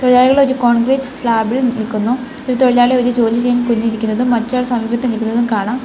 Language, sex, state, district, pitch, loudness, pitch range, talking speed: Malayalam, female, Kerala, Kollam, 245 Hz, -14 LUFS, 230-255 Hz, 155 wpm